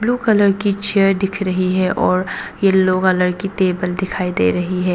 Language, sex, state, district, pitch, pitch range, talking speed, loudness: Hindi, female, Arunachal Pradesh, Papum Pare, 190 Hz, 185-195 Hz, 180 wpm, -17 LUFS